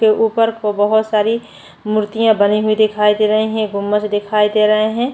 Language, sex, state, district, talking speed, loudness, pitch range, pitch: Hindi, female, Chhattisgarh, Bastar, 175 wpm, -15 LUFS, 210-220 Hz, 215 Hz